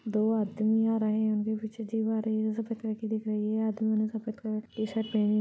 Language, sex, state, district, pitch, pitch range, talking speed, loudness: Hindi, female, Chhattisgarh, Rajnandgaon, 220 Hz, 215-220 Hz, 275 wpm, -30 LUFS